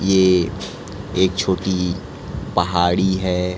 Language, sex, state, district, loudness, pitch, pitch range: Hindi, male, Chhattisgarh, Raipur, -19 LUFS, 95 Hz, 90-95 Hz